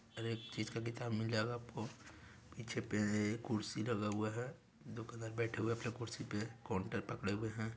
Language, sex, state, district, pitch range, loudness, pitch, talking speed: Hindi, male, Bihar, Gaya, 105-115 Hz, -41 LUFS, 115 Hz, 195 wpm